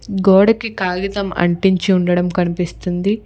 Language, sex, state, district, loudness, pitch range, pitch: Telugu, female, Telangana, Hyderabad, -16 LUFS, 180-200 Hz, 190 Hz